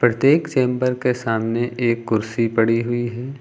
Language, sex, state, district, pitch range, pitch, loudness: Hindi, male, Uttar Pradesh, Lucknow, 115-125 Hz, 120 Hz, -20 LUFS